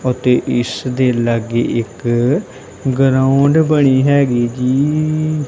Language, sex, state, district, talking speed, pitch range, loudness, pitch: Punjabi, male, Punjab, Kapurthala, 100 wpm, 120-140 Hz, -15 LUFS, 130 Hz